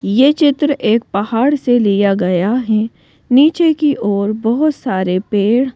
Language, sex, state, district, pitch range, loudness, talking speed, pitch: Hindi, female, Madhya Pradesh, Bhopal, 205-280 Hz, -14 LUFS, 145 wpm, 230 Hz